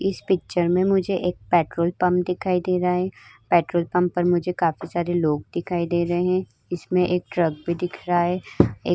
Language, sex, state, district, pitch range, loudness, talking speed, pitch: Hindi, female, Uttar Pradesh, Hamirpur, 175-180 Hz, -23 LUFS, 210 wpm, 180 Hz